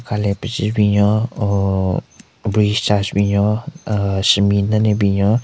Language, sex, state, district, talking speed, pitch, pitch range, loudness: Rengma, male, Nagaland, Kohima, 155 wpm, 105 Hz, 100-110 Hz, -17 LUFS